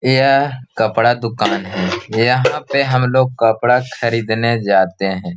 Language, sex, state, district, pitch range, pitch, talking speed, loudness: Hindi, male, Bihar, Gaya, 110-130 Hz, 115 Hz, 135 wpm, -16 LUFS